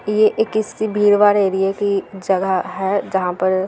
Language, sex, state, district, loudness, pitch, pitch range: Hindi, female, Bihar, Gaya, -17 LUFS, 195 Hz, 190-210 Hz